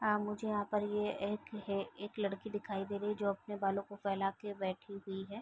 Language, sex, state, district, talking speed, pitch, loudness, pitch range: Hindi, female, Bihar, East Champaran, 245 wpm, 205 Hz, -39 LUFS, 195-210 Hz